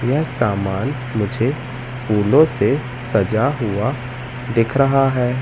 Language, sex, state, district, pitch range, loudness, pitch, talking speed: Hindi, male, Madhya Pradesh, Katni, 115-135 Hz, -19 LUFS, 125 Hz, 110 wpm